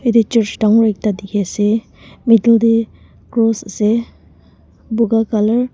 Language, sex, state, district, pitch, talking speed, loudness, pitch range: Nagamese, female, Nagaland, Dimapur, 225 Hz, 135 wpm, -15 LUFS, 215-230 Hz